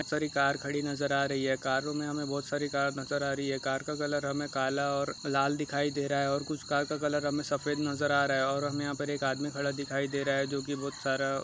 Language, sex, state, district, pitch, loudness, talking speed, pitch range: Hindi, male, Goa, North and South Goa, 140 Hz, -31 LUFS, 290 wpm, 140-145 Hz